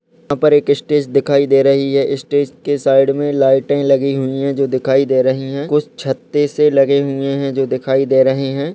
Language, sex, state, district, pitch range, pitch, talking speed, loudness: Hindi, male, Chhattisgarh, Raigarh, 135-145 Hz, 140 Hz, 210 wpm, -15 LUFS